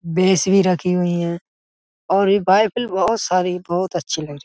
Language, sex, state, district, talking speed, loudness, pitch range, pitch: Hindi, male, Uttar Pradesh, Budaun, 190 wpm, -18 LUFS, 170-190 Hz, 180 Hz